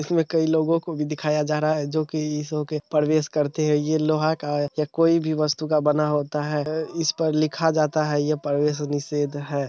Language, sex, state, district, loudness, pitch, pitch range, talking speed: Hindi, male, Bihar, Araria, -23 LUFS, 150 Hz, 150-155 Hz, 235 wpm